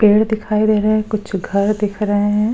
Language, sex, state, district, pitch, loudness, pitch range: Hindi, female, Goa, North and South Goa, 210 Hz, -17 LUFS, 205-215 Hz